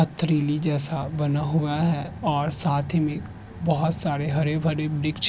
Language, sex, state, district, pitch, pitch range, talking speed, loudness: Hindi, male, Uttar Pradesh, Hamirpur, 155 Hz, 150-160 Hz, 170 wpm, -24 LUFS